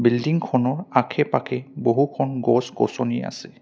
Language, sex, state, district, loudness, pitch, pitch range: Assamese, male, Assam, Kamrup Metropolitan, -22 LUFS, 125 Hz, 120-140 Hz